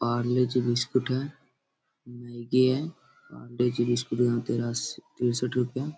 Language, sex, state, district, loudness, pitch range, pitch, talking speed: Hindi, male, Bihar, Gaya, -27 LUFS, 120-130 Hz, 125 Hz, 130 wpm